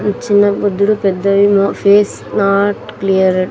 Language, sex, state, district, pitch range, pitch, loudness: Telugu, female, Andhra Pradesh, Sri Satya Sai, 195-205 Hz, 200 Hz, -13 LUFS